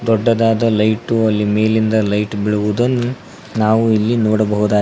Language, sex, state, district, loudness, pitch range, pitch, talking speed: Kannada, male, Karnataka, Koppal, -16 LUFS, 105-115 Hz, 110 Hz, 110 wpm